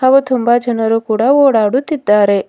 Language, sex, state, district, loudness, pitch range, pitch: Kannada, female, Karnataka, Bidar, -13 LUFS, 220-265 Hz, 240 Hz